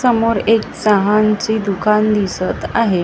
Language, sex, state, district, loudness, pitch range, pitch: Marathi, female, Maharashtra, Gondia, -15 LUFS, 205-225 Hz, 215 Hz